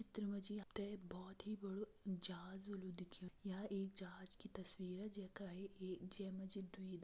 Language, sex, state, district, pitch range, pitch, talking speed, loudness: Hindi, female, Uttarakhand, Tehri Garhwal, 185-200 Hz, 195 Hz, 185 wpm, -50 LUFS